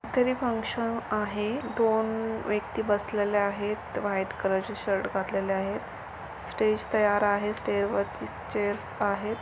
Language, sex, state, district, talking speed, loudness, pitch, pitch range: Marathi, female, Maharashtra, Sindhudurg, 115 wpm, -28 LUFS, 210 Hz, 200-220 Hz